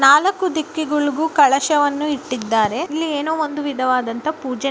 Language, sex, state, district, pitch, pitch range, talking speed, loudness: Kannada, female, Karnataka, Bijapur, 295 Hz, 265-315 Hz, 115 wpm, -19 LUFS